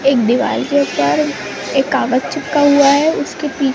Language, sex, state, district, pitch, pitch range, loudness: Hindi, female, Maharashtra, Gondia, 275 Hz, 255-285 Hz, -15 LUFS